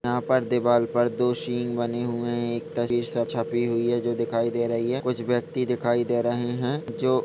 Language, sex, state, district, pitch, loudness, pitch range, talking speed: Hindi, male, Jharkhand, Sahebganj, 120 Hz, -25 LUFS, 120-125 Hz, 215 wpm